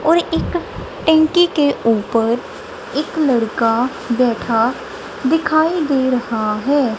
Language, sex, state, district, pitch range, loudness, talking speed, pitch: Hindi, female, Punjab, Kapurthala, 230-320 Hz, -17 LUFS, 105 wpm, 260 Hz